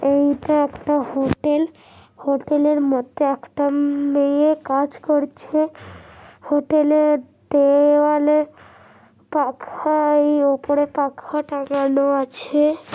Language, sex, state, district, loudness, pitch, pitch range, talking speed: Bengali, female, West Bengal, North 24 Parganas, -19 LUFS, 290 Hz, 280-300 Hz, 85 wpm